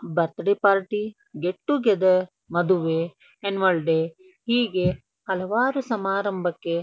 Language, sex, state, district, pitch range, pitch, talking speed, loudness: Kannada, female, Karnataka, Dharwad, 175-210 Hz, 190 Hz, 95 wpm, -24 LUFS